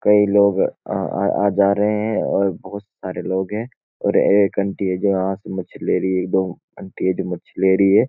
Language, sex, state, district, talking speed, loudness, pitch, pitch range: Hindi, male, Uttarakhand, Uttarkashi, 220 wpm, -19 LUFS, 100 Hz, 95-100 Hz